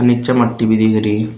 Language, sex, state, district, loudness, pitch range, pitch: Hindi, male, Uttar Pradesh, Shamli, -14 LUFS, 110-120 Hz, 110 Hz